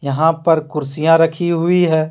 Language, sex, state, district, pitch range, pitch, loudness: Hindi, male, Jharkhand, Deoghar, 155-165 Hz, 160 Hz, -15 LUFS